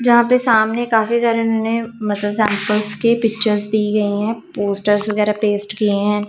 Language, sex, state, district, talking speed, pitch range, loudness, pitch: Hindi, female, Punjab, Kapurthala, 170 wpm, 210-230 Hz, -17 LUFS, 215 Hz